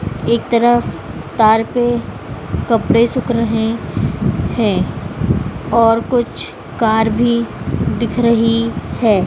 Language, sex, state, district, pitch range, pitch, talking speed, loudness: Hindi, female, Madhya Pradesh, Dhar, 225-235 Hz, 230 Hz, 95 wpm, -16 LUFS